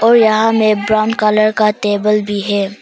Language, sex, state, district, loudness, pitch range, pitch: Hindi, female, Arunachal Pradesh, Papum Pare, -13 LUFS, 205-215 Hz, 215 Hz